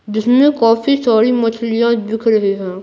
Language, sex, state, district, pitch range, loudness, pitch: Hindi, female, Bihar, Patna, 220-235 Hz, -14 LUFS, 230 Hz